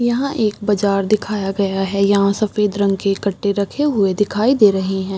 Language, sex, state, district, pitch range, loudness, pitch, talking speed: Hindi, female, Chhattisgarh, Rajnandgaon, 195-215 Hz, -17 LUFS, 200 Hz, 195 wpm